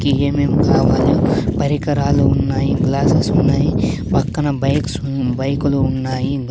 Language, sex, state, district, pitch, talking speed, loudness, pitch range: Telugu, male, Andhra Pradesh, Sri Satya Sai, 140 Hz, 100 wpm, -16 LUFS, 130-140 Hz